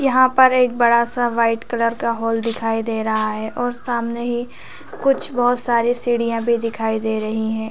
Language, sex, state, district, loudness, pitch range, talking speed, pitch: Hindi, female, Chhattisgarh, Raigarh, -19 LUFS, 225-245 Hz, 195 wpm, 235 Hz